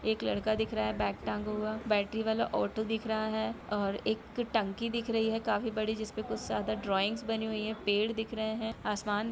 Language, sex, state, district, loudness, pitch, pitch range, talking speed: Hindi, female, Bihar, Samastipur, -33 LUFS, 220 Hz, 210-225 Hz, 225 wpm